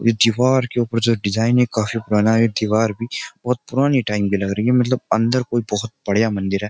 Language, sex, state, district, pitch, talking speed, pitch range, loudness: Hindi, male, Uttar Pradesh, Jyotiba Phule Nagar, 115 Hz, 240 wpm, 105-125 Hz, -19 LUFS